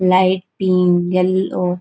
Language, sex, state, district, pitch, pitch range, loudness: Konkani, female, Goa, North and South Goa, 185 Hz, 180-185 Hz, -16 LUFS